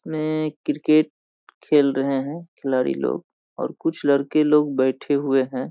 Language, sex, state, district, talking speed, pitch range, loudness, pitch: Hindi, male, Bihar, Saharsa, 145 wpm, 135-155 Hz, -22 LUFS, 145 Hz